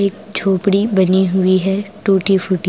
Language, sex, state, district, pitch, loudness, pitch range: Hindi, female, Bihar, Patna, 195 Hz, -15 LUFS, 185-200 Hz